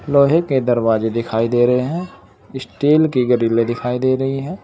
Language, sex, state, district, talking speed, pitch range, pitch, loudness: Hindi, male, Uttar Pradesh, Saharanpur, 180 wpm, 115-140 Hz, 125 Hz, -17 LUFS